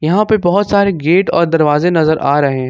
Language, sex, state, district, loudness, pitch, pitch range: Hindi, male, Jharkhand, Ranchi, -12 LUFS, 165 Hz, 150-195 Hz